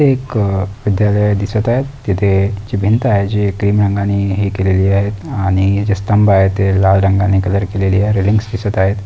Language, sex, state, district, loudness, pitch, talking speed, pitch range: Marathi, male, Maharashtra, Dhule, -14 LUFS, 100 Hz, 170 wpm, 95-105 Hz